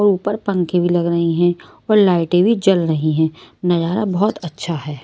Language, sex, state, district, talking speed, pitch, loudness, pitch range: Hindi, female, Maharashtra, Mumbai Suburban, 200 wpm, 175 Hz, -17 LUFS, 165-200 Hz